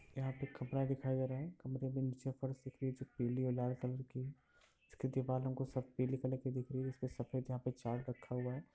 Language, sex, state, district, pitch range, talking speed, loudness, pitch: Hindi, male, Bihar, Lakhisarai, 125-135 Hz, 260 wpm, -42 LUFS, 130 Hz